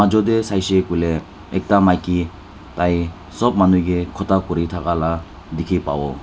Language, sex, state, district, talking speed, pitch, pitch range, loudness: Nagamese, male, Nagaland, Dimapur, 155 wpm, 90 Hz, 85-100 Hz, -19 LUFS